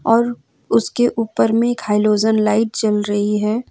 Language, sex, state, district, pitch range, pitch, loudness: Hindi, female, Jharkhand, Ranchi, 210-230 Hz, 220 Hz, -17 LUFS